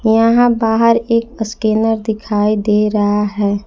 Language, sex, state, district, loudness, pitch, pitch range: Hindi, female, Jharkhand, Palamu, -14 LUFS, 220 Hz, 210-230 Hz